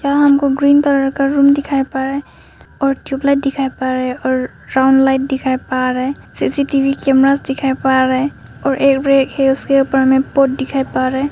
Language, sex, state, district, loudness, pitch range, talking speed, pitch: Hindi, female, Arunachal Pradesh, Papum Pare, -15 LUFS, 265-275 Hz, 200 wpm, 270 Hz